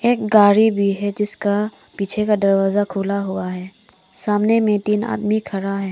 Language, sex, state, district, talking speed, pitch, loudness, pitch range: Hindi, female, Arunachal Pradesh, Papum Pare, 170 wpm, 205 Hz, -19 LUFS, 195-210 Hz